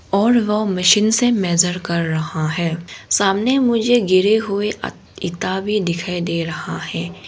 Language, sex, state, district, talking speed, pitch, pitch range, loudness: Hindi, female, Arunachal Pradesh, Longding, 150 wpm, 185 Hz, 170-215 Hz, -18 LUFS